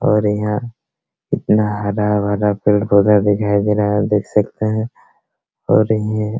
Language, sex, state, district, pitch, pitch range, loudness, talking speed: Hindi, male, Bihar, Araria, 105 Hz, 105-110 Hz, -17 LUFS, 150 wpm